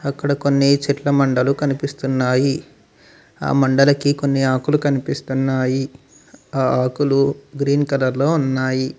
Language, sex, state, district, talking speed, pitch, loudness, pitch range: Telugu, male, Telangana, Mahabubabad, 105 wpm, 140 Hz, -18 LUFS, 130-140 Hz